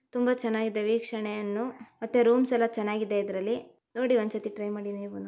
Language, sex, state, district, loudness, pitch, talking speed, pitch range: Kannada, female, Karnataka, Mysore, -29 LUFS, 220 Hz, 145 wpm, 210-235 Hz